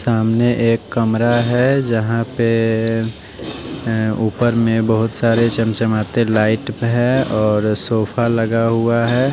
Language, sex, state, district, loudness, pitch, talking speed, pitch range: Hindi, male, Odisha, Nuapada, -16 LUFS, 115 Hz, 120 wpm, 110-120 Hz